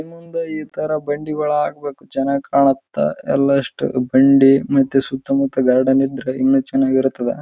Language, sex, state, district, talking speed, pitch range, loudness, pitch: Kannada, male, Karnataka, Raichur, 135 wpm, 135-145 Hz, -17 LUFS, 135 Hz